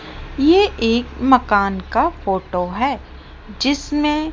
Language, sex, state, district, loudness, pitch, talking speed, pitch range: Hindi, female, Rajasthan, Jaipur, -18 LUFS, 260 Hz, 95 wpm, 205-300 Hz